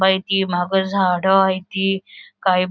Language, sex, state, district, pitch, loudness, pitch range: Marathi, female, Maharashtra, Solapur, 190 Hz, -19 LUFS, 185-195 Hz